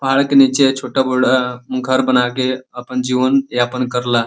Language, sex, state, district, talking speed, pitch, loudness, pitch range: Bhojpuri, male, Uttar Pradesh, Deoria, 170 wpm, 130 Hz, -16 LUFS, 125-130 Hz